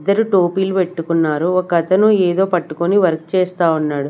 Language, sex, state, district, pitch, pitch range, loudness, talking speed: Telugu, female, Andhra Pradesh, Sri Satya Sai, 180 Hz, 165-190 Hz, -16 LUFS, 145 wpm